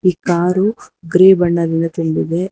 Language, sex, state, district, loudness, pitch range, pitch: Kannada, female, Karnataka, Bangalore, -15 LUFS, 165-185 Hz, 175 Hz